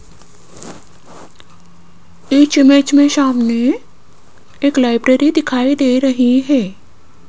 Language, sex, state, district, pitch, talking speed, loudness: Hindi, female, Rajasthan, Jaipur, 260 Hz, 80 wpm, -13 LUFS